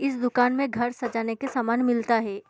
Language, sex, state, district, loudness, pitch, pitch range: Hindi, female, Uttar Pradesh, Muzaffarnagar, -25 LUFS, 245 Hz, 230-250 Hz